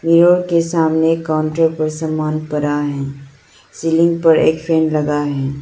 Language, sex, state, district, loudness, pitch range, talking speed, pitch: Hindi, female, Arunachal Pradesh, Lower Dibang Valley, -16 LUFS, 150-165 Hz, 150 wpm, 160 Hz